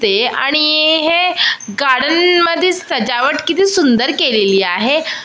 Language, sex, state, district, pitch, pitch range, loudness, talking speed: Marathi, female, Maharashtra, Aurangabad, 310 Hz, 260-350 Hz, -13 LUFS, 135 wpm